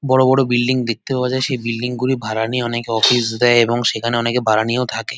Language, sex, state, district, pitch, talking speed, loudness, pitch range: Bengali, male, West Bengal, North 24 Parganas, 120 Hz, 230 wpm, -17 LUFS, 115-125 Hz